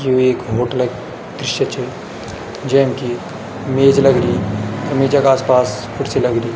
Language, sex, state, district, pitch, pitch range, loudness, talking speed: Garhwali, male, Uttarakhand, Tehri Garhwal, 125 Hz, 120-135 Hz, -16 LUFS, 135 wpm